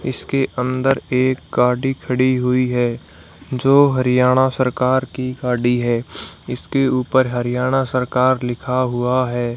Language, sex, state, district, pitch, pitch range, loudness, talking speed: Hindi, male, Haryana, Rohtak, 125 Hz, 125-130 Hz, -18 LUFS, 125 wpm